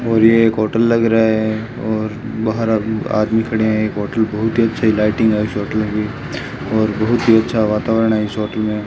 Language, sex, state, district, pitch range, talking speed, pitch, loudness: Hindi, male, Rajasthan, Bikaner, 110-115 Hz, 205 wpm, 110 Hz, -16 LUFS